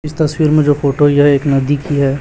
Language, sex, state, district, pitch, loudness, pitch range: Hindi, male, Chhattisgarh, Raipur, 145 Hz, -13 LUFS, 140-150 Hz